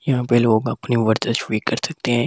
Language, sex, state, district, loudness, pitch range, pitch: Hindi, male, Delhi, New Delhi, -20 LUFS, 110-125 Hz, 120 Hz